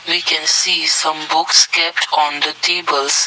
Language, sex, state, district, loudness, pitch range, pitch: English, male, Assam, Kamrup Metropolitan, -14 LUFS, 145-165 Hz, 155 Hz